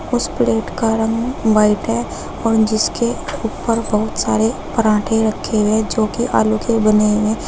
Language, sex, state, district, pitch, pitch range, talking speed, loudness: Hindi, female, Uttar Pradesh, Saharanpur, 220 Hz, 210-225 Hz, 160 wpm, -17 LUFS